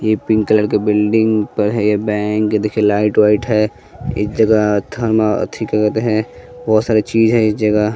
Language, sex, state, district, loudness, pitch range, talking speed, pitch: Hindi, male, Bihar, West Champaran, -15 LUFS, 105-110 Hz, 175 wpm, 105 Hz